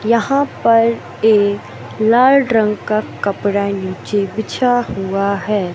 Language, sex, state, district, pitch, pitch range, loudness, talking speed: Hindi, male, Madhya Pradesh, Katni, 215 Hz, 200-230 Hz, -16 LUFS, 115 wpm